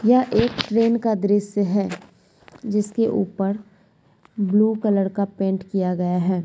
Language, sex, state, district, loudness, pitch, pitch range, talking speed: Angika, female, Bihar, Madhepura, -21 LUFS, 205 Hz, 195-220 Hz, 140 wpm